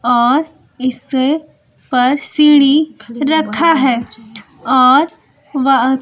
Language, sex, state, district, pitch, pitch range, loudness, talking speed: Hindi, female, Bihar, West Champaran, 265 Hz, 245-300 Hz, -13 LUFS, 80 wpm